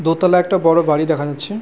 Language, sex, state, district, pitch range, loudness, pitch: Bengali, male, West Bengal, Purulia, 155-180 Hz, -15 LUFS, 165 Hz